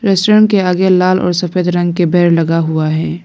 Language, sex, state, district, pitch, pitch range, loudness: Hindi, female, Arunachal Pradesh, Lower Dibang Valley, 175 Hz, 170-185 Hz, -12 LUFS